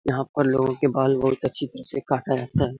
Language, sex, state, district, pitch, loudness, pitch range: Hindi, male, Bihar, Lakhisarai, 135 Hz, -23 LUFS, 130-140 Hz